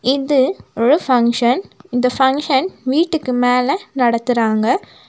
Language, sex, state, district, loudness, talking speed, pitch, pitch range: Tamil, female, Tamil Nadu, Nilgiris, -16 LUFS, 105 wpm, 255 Hz, 245-275 Hz